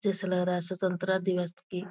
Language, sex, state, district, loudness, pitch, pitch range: Hindi, female, Bihar, Muzaffarpur, -30 LUFS, 185 Hz, 180-190 Hz